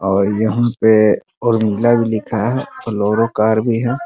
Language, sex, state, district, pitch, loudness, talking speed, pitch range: Hindi, male, Bihar, Muzaffarpur, 110 Hz, -16 LUFS, 165 wpm, 105-120 Hz